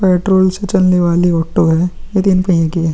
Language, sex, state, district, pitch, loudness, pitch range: Hindi, male, Bihar, Vaishali, 180 Hz, -13 LUFS, 170-190 Hz